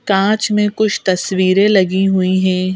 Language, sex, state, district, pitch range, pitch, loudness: Hindi, female, Madhya Pradesh, Bhopal, 185-210 Hz, 195 Hz, -14 LUFS